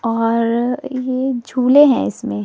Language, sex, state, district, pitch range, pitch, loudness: Hindi, female, Delhi, New Delhi, 230-260 Hz, 250 Hz, -16 LUFS